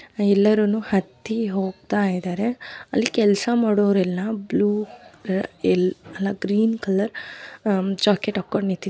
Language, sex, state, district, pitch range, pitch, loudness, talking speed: Kannada, female, Karnataka, Dharwad, 195-215 Hz, 205 Hz, -22 LUFS, 100 wpm